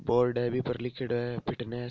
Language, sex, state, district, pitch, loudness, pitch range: Marwari, male, Rajasthan, Nagaur, 120 Hz, -31 LUFS, 120-125 Hz